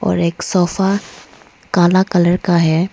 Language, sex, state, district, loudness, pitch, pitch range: Hindi, female, Arunachal Pradesh, Lower Dibang Valley, -15 LUFS, 180 Hz, 175-190 Hz